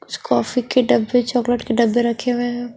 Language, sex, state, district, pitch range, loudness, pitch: Hindi, female, Haryana, Charkhi Dadri, 235-245 Hz, -18 LUFS, 245 Hz